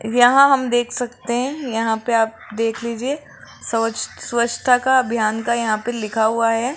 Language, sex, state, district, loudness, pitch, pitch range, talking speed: Hindi, female, Rajasthan, Jaipur, -19 LUFS, 235 Hz, 225-245 Hz, 175 wpm